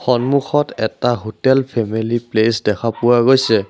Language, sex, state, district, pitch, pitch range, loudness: Assamese, male, Assam, Sonitpur, 120 Hz, 110-130 Hz, -16 LUFS